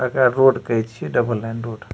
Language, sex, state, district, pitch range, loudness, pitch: Maithili, male, Bihar, Supaul, 115-130 Hz, -19 LUFS, 120 Hz